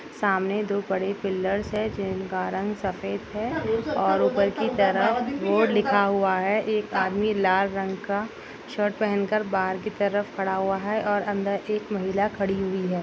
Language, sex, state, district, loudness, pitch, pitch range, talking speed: Hindi, female, Maharashtra, Sindhudurg, -25 LUFS, 200 Hz, 190-210 Hz, 175 wpm